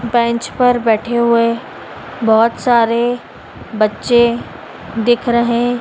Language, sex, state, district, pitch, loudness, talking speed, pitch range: Hindi, female, Madhya Pradesh, Dhar, 235 Hz, -14 LUFS, 95 wpm, 230-240 Hz